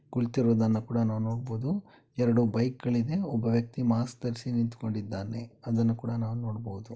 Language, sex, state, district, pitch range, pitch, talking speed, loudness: Kannada, male, Karnataka, Bellary, 115-120 Hz, 115 Hz, 140 wpm, -30 LUFS